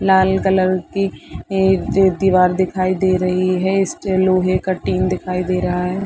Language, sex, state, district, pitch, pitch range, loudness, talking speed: Hindi, female, Chhattisgarh, Bastar, 185 Hz, 185-190 Hz, -17 LUFS, 180 wpm